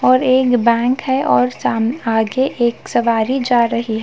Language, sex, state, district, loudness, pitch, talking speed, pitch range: Hindi, female, Bihar, Gaya, -16 LUFS, 235 Hz, 165 wpm, 225-255 Hz